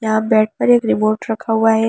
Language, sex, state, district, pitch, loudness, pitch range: Hindi, female, Delhi, New Delhi, 220 Hz, -16 LUFS, 215-225 Hz